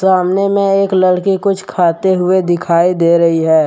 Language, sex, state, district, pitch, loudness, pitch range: Hindi, male, Jharkhand, Deoghar, 185 Hz, -12 LUFS, 170-190 Hz